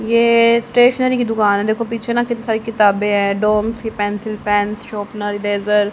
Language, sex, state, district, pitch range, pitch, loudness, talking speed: Hindi, female, Haryana, Charkhi Dadri, 205-230 Hz, 215 Hz, -17 LUFS, 190 wpm